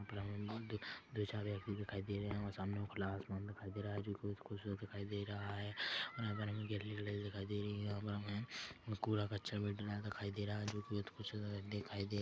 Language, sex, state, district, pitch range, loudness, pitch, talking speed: Hindi, male, Chhattisgarh, Korba, 100-105 Hz, -44 LUFS, 105 Hz, 245 wpm